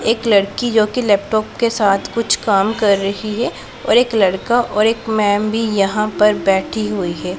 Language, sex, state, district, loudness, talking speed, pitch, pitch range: Hindi, female, Punjab, Pathankot, -16 LUFS, 195 wpm, 215 Hz, 200-225 Hz